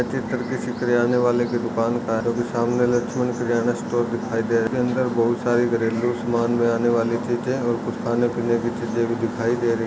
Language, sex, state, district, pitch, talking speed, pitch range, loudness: Hindi, male, Maharashtra, Chandrapur, 120 Hz, 235 wpm, 115-120 Hz, -22 LUFS